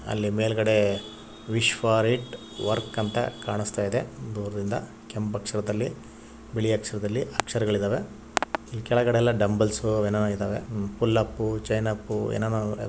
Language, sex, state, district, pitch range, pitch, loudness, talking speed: Kannada, male, Karnataka, Raichur, 105-115 Hz, 110 Hz, -27 LUFS, 95 wpm